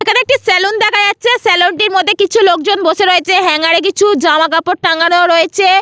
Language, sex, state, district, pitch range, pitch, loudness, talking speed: Bengali, female, West Bengal, Paschim Medinipur, 345-410 Hz, 380 Hz, -10 LUFS, 195 wpm